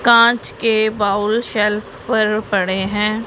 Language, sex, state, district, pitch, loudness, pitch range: Hindi, female, Punjab, Pathankot, 215 Hz, -17 LUFS, 210-230 Hz